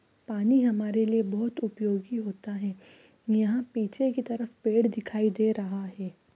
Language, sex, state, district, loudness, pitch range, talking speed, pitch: Hindi, female, Bihar, East Champaran, -28 LUFS, 205-235 Hz, 160 wpm, 220 Hz